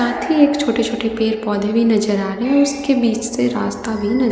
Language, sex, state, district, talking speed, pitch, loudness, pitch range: Hindi, female, Delhi, New Delhi, 250 wpm, 230 Hz, -17 LUFS, 220-255 Hz